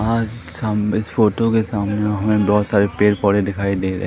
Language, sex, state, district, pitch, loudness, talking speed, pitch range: Hindi, male, Madhya Pradesh, Katni, 105 Hz, -18 LUFS, 205 wpm, 100-110 Hz